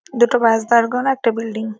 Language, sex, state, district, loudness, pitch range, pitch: Bengali, female, West Bengal, North 24 Parganas, -17 LUFS, 225-245 Hz, 235 Hz